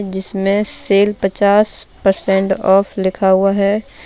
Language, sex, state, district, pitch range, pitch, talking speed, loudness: Hindi, female, Jharkhand, Deoghar, 190-200 Hz, 195 Hz, 120 wpm, -14 LUFS